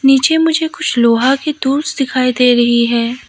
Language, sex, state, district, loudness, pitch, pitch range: Hindi, female, Arunachal Pradesh, Lower Dibang Valley, -13 LUFS, 265 Hz, 240-300 Hz